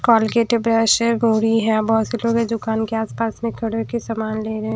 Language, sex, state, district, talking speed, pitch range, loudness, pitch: Hindi, female, Haryana, Jhajjar, 240 wpm, 220-230 Hz, -19 LUFS, 225 Hz